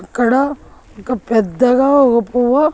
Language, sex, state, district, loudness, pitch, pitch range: Telugu, female, Andhra Pradesh, Annamaya, -14 LUFS, 250 Hz, 235-275 Hz